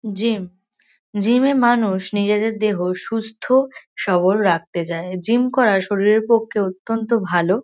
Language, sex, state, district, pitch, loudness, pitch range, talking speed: Bengali, female, West Bengal, North 24 Parganas, 210 Hz, -19 LUFS, 190-225 Hz, 125 wpm